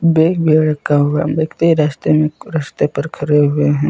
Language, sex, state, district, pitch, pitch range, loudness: Hindi, male, Jharkhand, Palamu, 155 Hz, 145-160 Hz, -15 LUFS